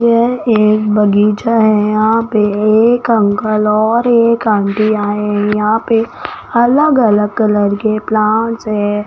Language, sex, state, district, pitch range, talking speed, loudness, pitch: Hindi, female, Rajasthan, Jaipur, 210-230 Hz, 140 wpm, -12 LUFS, 215 Hz